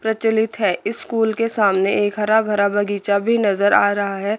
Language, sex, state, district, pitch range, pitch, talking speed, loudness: Hindi, female, Chandigarh, Chandigarh, 205-220 Hz, 210 Hz, 190 wpm, -18 LUFS